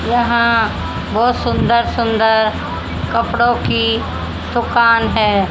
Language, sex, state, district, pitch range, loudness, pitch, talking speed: Hindi, female, Haryana, Jhajjar, 220-235 Hz, -15 LUFS, 230 Hz, 85 wpm